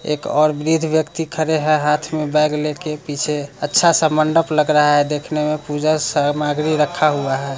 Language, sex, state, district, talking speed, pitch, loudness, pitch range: Hindi, male, Bihar, Muzaffarpur, 190 wpm, 150 Hz, -17 LUFS, 150-155 Hz